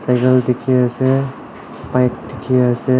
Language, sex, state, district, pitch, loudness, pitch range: Nagamese, male, Nagaland, Kohima, 125 Hz, -16 LUFS, 125-130 Hz